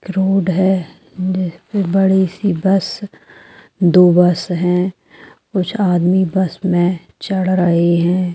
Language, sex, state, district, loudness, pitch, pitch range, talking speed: Magahi, female, Bihar, Gaya, -15 LUFS, 185 Hz, 175-190 Hz, 130 wpm